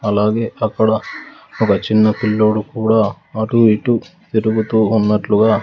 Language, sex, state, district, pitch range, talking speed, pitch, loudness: Telugu, male, Andhra Pradesh, Sri Satya Sai, 105-110 Hz, 105 wpm, 110 Hz, -16 LUFS